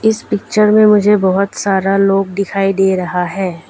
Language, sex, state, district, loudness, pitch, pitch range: Hindi, female, Arunachal Pradesh, Lower Dibang Valley, -13 LUFS, 195 Hz, 190-205 Hz